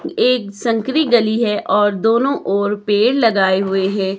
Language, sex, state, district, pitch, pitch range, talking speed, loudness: Hindi, male, Himachal Pradesh, Shimla, 215 Hz, 200-240 Hz, 155 wpm, -16 LUFS